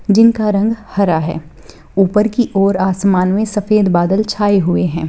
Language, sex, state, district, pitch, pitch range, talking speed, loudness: Hindi, female, Bihar, Begusarai, 200 Hz, 185-210 Hz, 165 wpm, -14 LUFS